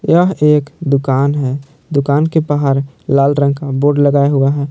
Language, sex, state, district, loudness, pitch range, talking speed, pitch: Hindi, male, Jharkhand, Palamu, -14 LUFS, 140-145 Hz, 180 wpm, 140 Hz